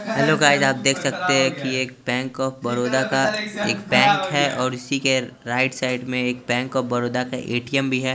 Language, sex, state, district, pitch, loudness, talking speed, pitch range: Hindi, male, Chandigarh, Chandigarh, 130 Hz, -21 LUFS, 205 wpm, 125-140 Hz